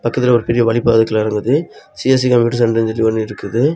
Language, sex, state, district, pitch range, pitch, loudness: Tamil, male, Tamil Nadu, Kanyakumari, 110-120 Hz, 115 Hz, -15 LUFS